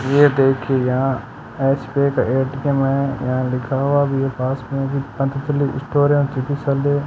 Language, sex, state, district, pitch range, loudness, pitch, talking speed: Hindi, male, Rajasthan, Bikaner, 135-140 Hz, -19 LUFS, 135 Hz, 110 wpm